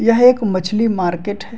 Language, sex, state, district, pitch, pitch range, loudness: Hindi, male, Bihar, Madhepura, 215 Hz, 190-230 Hz, -16 LUFS